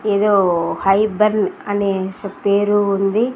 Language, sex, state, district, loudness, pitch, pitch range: Telugu, female, Andhra Pradesh, Sri Satya Sai, -17 LUFS, 200 Hz, 195-210 Hz